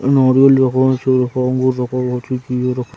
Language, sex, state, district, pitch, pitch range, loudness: Hindi, male, Chhattisgarh, Raigarh, 130 Hz, 125-130 Hz, -15 LUFS